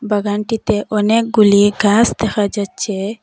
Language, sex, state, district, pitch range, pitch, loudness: Bengali, female, Assam, Hailakandi, 205-220 Hz, 210 Hz, -15 LUFS